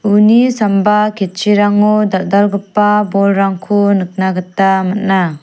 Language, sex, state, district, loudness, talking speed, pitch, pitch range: Garo, female, Meghalaya, South Garo Hills, -12 LUFS, 90 wpm, 200 Hz, 190-210 Hz